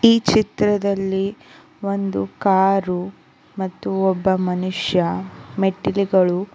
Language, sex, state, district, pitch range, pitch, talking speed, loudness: Kannada, female, Karnataka, Koppal, 185-200 Hz, 190 Hz, 80 wpm, -20 LUFS